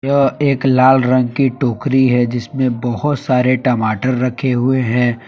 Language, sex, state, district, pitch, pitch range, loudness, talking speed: Hindi, male, Jharkhand, Palamu, 130 Hz, 120-135 Hz, -15 LUFS, 160 wpm